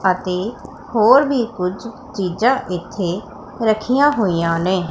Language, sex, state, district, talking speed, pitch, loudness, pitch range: Punjabi, female, Punjab, Pathankot, 110 wpm, 205 Hz, -18 LUFS, 180-245 Hz